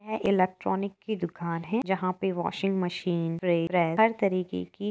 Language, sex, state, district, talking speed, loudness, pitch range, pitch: Hindi, female, Uttar Pradesh, Etah, 160 wpm, -28 LUFS, 175-200 Hz, 185 Hz